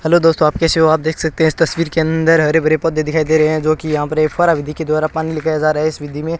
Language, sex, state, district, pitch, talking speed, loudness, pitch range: Hindi, male, Rajasthan, Bikaner, 160 Hz, 355 wpm, -15 LUFS, 155-160 Hz